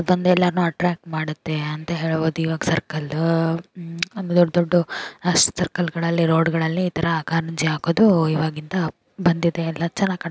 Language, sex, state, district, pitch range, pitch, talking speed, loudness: Kannada, female, Karnataka, Chamarajanagar, 160-175 Hz, 165 Hz, 120 wpm, -21 LUFS